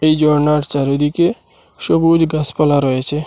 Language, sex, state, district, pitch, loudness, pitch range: Bengali, male, Assam, Hailakandi, 150 Hz, -14 LUFS, 145-155 Hz